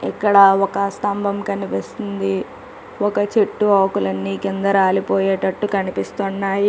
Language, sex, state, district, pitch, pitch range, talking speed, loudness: Telugu, female, Telangana, Karimnagar, 195 Hz, 190-200 Hz, 90 wpm, -18 LUFS